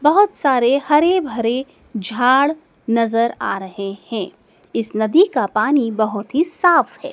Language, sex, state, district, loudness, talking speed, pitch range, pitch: Hindi, female, Madhya Pradesh, Dhar, -18 LUFS, 145 wpm, 220-300 Hz, 250 Hz